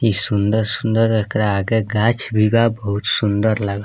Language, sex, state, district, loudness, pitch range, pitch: Bhojpuri, male, Bihar, East Champaran, -17 LUFS, 105-110 Hz, 110 Hz